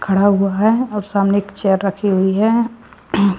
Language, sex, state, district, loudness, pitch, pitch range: Hindi, female, Bihar, Katihar, -16 LUFS, 200 Hz, 195-215 Hz